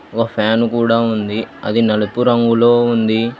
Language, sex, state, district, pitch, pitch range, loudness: Telugu, male, Telangana, Hyderabad, 115 Hz, 110-115 Hz, -15 LUFS